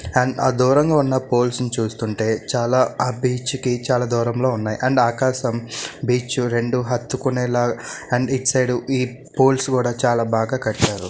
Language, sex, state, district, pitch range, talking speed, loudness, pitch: Telugu, male, Andhra Pradesh, Visakhapatnam, 120-130 Hz, 150 wpm, -20 LUFS, 125 Hz